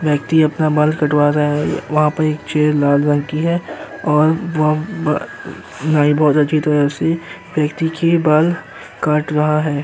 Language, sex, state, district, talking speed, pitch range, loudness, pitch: Hindi, male, Uttar Pradesh, Jyotiba Phule Nagar, 170 wpm, 150-160 Hz, -16 LUFS, 150 Hz